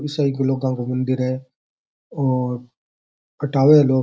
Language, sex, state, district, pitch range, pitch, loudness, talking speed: Rajasthani, male, Rajasthan, Churu, 130-140 Hz, 130 Hz, -20 LUFS, 90 wpm